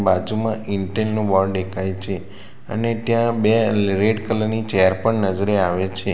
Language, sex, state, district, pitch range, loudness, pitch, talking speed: Gujarati, male, Gujarat, Valsad, 95-110 Hz, -20 LUFS, 100 Hz, 175 wpm